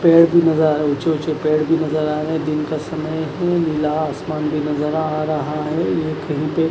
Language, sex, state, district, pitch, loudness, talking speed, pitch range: Hindi, male, Punjab, Kapurthala, 155 Hz, -19 LUFS, 250 wpm, 150-160 Hz